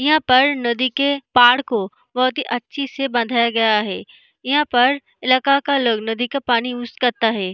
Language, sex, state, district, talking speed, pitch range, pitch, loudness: Hindi, female, Bihar, East Champaran, 190 wpm, 235-275 Hz, 250 Hz, -18 LUFS